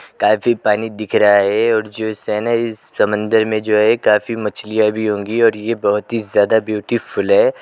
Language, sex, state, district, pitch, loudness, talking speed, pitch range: Hindi, male, Uttar Pradesh, Jyotiba Phule Nagar, 110 Hz, -16 LUFS, 180 wpm, 105-115 Hz